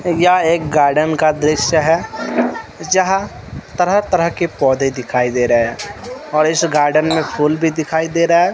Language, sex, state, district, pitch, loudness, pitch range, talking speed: Hindi, female, Bihar, West Champaran, 160 Hz, -15 LUFS, 150-170 Hz, 175 wpm